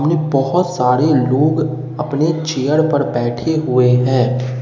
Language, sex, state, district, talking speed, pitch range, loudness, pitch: Hindi, male, Bihar, Katihar, 115 wpm, 125-155 Hz, -16 LUFS, 145 Hz